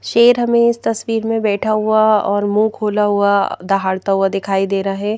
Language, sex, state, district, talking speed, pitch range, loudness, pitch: Hindi, female, Madhya Pradesh, Bhopal, 195 wpm, 195-225 Hz, -16 LUFS, 210 Hz